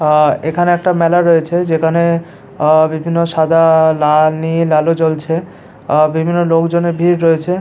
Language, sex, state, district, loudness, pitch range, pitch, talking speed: Bengali, male, West Bengal, Paschim Medinipur, -13 LUFS, 160-170 Hz, 165 Hz, 125 wpm